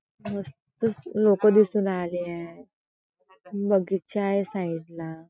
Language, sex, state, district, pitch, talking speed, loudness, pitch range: Marathi, female, Maharashtra, Chandrapur, 190 Hz, 90 wpm, -25 LUFS, 170-205 Hz